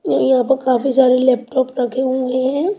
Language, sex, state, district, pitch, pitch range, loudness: Hindi, female, Haryana, Rohtak, 260 Hz, 255-265 Hz, -16 LUFS